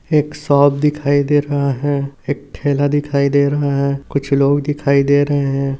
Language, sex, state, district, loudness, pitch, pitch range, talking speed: Hindi, male, Maharashtra, Dhule, -16 LUFS, 140 Hz, 140-145 Hz, 185 wpm